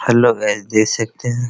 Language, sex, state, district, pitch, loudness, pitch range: Hindi, male, Bihar, Araria, 115 Hz, -17 LUFS, 110-120 Hz